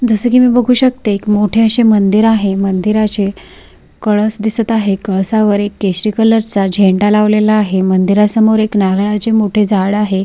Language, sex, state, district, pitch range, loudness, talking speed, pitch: Marathi, female, Maharashtra, Sindhudurg, 200-220 Hz, -12 LUFS, 150 wpm, 210 Hz